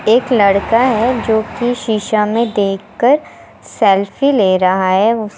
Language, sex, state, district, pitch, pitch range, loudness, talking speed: Hindi, female, Bihar, Muzaffarpur, 220 Hz, 200-240 Hz, -14 LUFS, 145 wpm